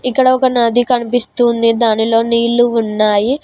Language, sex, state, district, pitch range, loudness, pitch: Telugu, female, Telangana, Mahabubabad, 230-245 Hz, -13 LUFS, 235 Hz